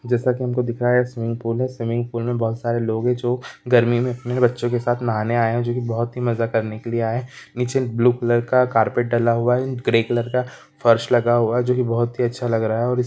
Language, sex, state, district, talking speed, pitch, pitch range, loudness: Hindi, male, Chhattisgarh, Bilaspur, 280 wpm, 120 Hz, 115-125 Hz, -20 LUFS